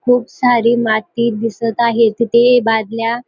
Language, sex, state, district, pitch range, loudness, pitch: Marathi, female, Maharashtra, Dhule, 230-240 Hz, -14 LUFS, 235 Hz